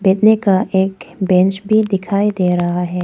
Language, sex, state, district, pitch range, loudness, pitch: Hindi, female, Arunachal Pradesh, Papum Pare, 180-200 Hz, -15 LUFS, 190 Hz